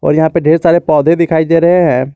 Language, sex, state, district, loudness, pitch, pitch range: Hindi, male, Jharkhand, Garhwa, -10 LUFS, 165 Hz, 155-170 Hz